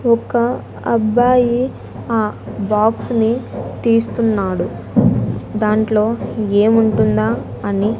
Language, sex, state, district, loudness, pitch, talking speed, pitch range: Telugu, female, Andhra Pradesh, Annamaya, -17 LUFS, 220 Hz, 70 wpm, 205-235 Hz